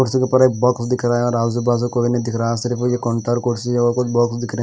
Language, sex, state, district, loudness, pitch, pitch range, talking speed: Hindi, male, Bihar, West Champaran, -18 LUFS, 120 Hz, 120-125 Hz, 270 wpm